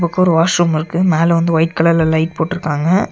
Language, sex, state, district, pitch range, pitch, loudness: Tamil, male, Tamil Nadu, Nilgiris, 160-175 Hz, 165 Hz, -14 LUFS